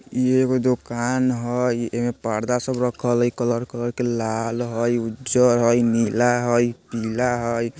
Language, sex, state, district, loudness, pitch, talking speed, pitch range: Bajjika, male, Bihar, Vaishali, -21 LUFS, 120 Hz, 155 wpm, 115-125 Hz